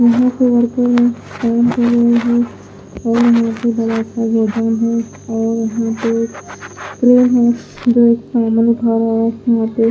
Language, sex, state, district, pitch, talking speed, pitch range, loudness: Hindi, female, Punjab, Pathankot, 235 Hz, 40 wpm, 225-240 Hz, -15 LUFS